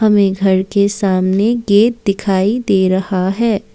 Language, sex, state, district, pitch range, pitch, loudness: Hindi, female, Assam, Kamrup Metropolitan, 190-215 Hz, 200 Hz, -14 LUFS